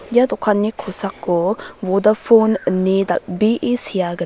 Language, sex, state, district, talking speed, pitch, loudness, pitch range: Garo, female, Meghalaya, West Garo Hills, 110 wpm, 200 Hz, -17 LUFS, 185-220 Hz